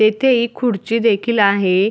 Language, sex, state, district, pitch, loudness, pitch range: Marathi, female, Maharashtra, Dhule, 220 Hz, -16 LUFS, 200-235 Hz